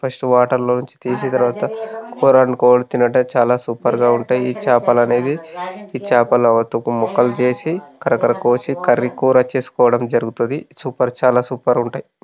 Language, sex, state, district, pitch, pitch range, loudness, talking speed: Telugu, male, Telangana, Nalgonda, 125 Hz, 120-130 Hz, -16 LUFS, 150 wpm